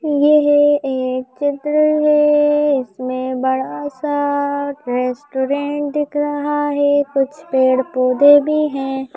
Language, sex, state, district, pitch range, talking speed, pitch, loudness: Hindi, female, Madhya Pradesh, Bhopal, 265-295 Hz, 110 wpm, 285 Hz, -16 LUFS